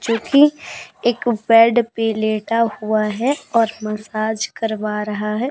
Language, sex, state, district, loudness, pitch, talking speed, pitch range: Hindi, female, Uttar Pradesh, Hamirpur, -18 LUFS, 225 Hz, 140 wpm, 215-235 Hz